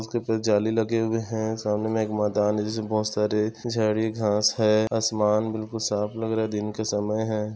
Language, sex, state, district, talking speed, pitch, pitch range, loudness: Hindi, male, Chhattisgarh, Korba, 215 wpm, 110 Hz, 105-110 Hz, -25 LUFS